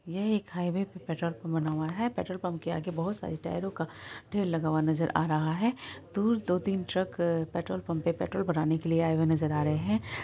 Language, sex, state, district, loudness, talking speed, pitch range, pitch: Hindi, female, Bihar, Araria, -31 LUFS, 230 wpm, 160-190 Hz, 170 Hz